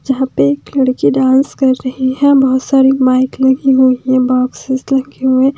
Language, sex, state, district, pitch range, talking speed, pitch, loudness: Hindi, female, Himachal Pradesh, Shimla, 255-265 Hz, 180 wpm, 260 Hz, -12 LUFS